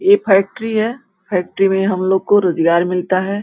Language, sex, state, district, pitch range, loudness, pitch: Hindi, female, Uttar Pradesh, Gorakhpur, 185-210 Hz, -16 LUFS, 195 Hz